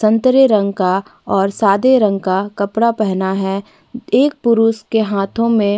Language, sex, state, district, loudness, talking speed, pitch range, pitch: Hindi, female, Chhattisgarh, Korba, -15 LUFS, 155 wpm, 195-230 Hz, 210 Hz